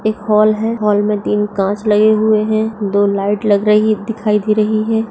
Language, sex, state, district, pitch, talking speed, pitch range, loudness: Hindi, female, Bihar, Saharsa, 210 Hz, 210 wpm, 210-215 Hz, -14 LUFS